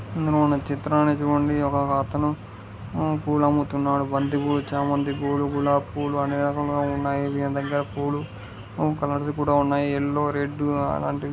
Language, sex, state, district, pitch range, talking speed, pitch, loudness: Telugu, male, Karnataka, Gulbarga, 140-145 Hz, 150 wpm, 145 Hz, -24 LUFS